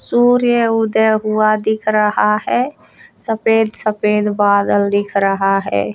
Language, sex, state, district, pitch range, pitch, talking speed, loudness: Hindi, female, Haryana, Jhajjar, 205-225 Hz, 215 Hz, 120 wpm, -15 LUFS